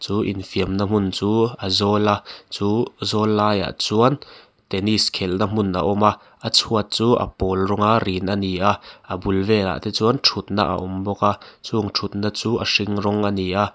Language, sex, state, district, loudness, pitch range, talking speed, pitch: Mizo, male, Mizoram, Aizawl, -20 LUFS, 95-105 Hz, 200 wpm, 100 Hz